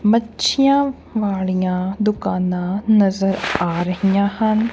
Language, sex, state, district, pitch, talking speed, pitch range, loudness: Punjabi, female, Punjab, Kapurthala, 200 Hz, 90 wpm, 185-220 Hz, -18 LUFS